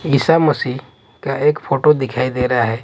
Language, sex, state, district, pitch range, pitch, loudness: Hindi, male, Maharashtra, Washim, 125-150 Hz, 135 Hz, -16 LUFS